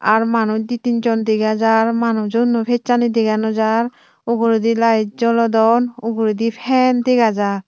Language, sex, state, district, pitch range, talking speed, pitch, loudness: Chakma, female, Tripura, Unakoti, 220-235 Hz, 140 wpm, 230 Hz, -16 LUFS